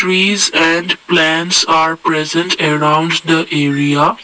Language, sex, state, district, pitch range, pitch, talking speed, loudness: English, male, Assam, Kamrup Metropolitan, 155-170 Hz, 160 Hz, 115 wpm, -12 LUFS